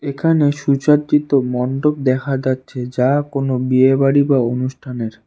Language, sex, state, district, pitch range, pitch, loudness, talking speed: Bengali, male, West Bengal, Alipurduar, 130-145 Hz, 135 Hz, -17 LUFS, 125 wpm